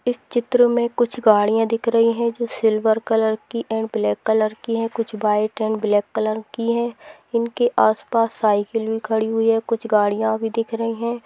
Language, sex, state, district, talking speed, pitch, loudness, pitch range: Hindi, female, Bihar, Sitamarhi, 185 wpm, 225 Hz, -20 LUFS, 220-230 Hz